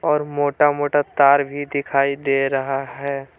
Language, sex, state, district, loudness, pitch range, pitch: Hindi, male, Jharkhand, Palamu, -19 LUFS, 135-145 Hz, 140 Hz